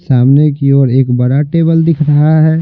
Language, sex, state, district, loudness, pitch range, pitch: Hindi, male, Bihar, Patna, -10 LUFS, 135-160 Hz, 145 Hz